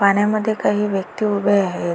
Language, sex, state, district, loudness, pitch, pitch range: Marathi, female, Maharashtra, Pune, -19 LUFS, 205 Hz, 200-210 Hz